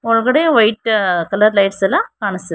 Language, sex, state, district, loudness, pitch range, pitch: Kannada, female, Karnataka, Bangalore, -14 LUFS, 195-230 Hz, 215 Hz